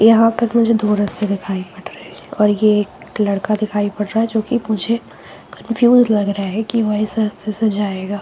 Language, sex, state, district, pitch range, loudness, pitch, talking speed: Hindi, female, Jharkhand, Sahebganj, 205-225 Hz, -17 LUFS, 215 Hz, 225 wpm